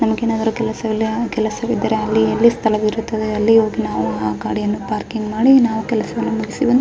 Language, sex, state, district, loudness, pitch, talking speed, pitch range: Kannada, female, Karnataka, Raichur, -18 LUFS, 220 Hz, 175 wpm, 215-225 Hz